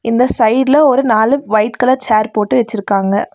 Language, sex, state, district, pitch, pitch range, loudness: Tamil, female, Tamil Nadu, Nilgiris, 230 Hz, 215-260 Hz, -13 LUFS